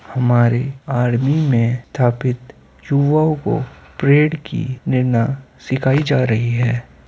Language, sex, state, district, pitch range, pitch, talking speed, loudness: Hindi, male, Uttar Pradesh, Hamirpur, 120-140 Hz, 130 Hz, 110 wpm, -17 LUFS